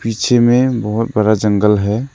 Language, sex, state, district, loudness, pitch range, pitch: Hindi, male, Arunachal Pradesh, Lower Dibang Valley, -14 LUFS, 105-120 Hz, 110 Hz